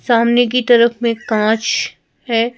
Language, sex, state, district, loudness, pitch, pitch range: Hindi, female, Madhya Pradesh, Bhopal, -15 LUFS, 235 Hz, 230-240 Hz